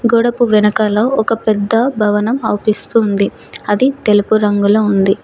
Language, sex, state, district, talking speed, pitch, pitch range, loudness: Telugu, female, Telangana, Mahabubabad, 115 wpm, 215 Hz, 205-230 Hz, -13 LUFS